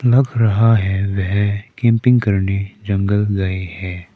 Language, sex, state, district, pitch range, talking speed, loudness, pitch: Hindi, male, Arunachal Pradesh, Papum Pare, 95-115 Hz, 130 wpm, -17 LUFS, 100 Hz